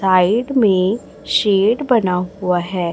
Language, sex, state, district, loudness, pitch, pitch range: Hindi, male, Chhattisgarh, Raipur, -16 LUFS, 195 Hz, 180-220 Hz